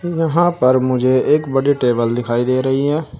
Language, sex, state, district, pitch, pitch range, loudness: Hindi, male, Uttar Pradesh, Saharanpur, 130 Hz, 125-150 Hz, -16 LUFS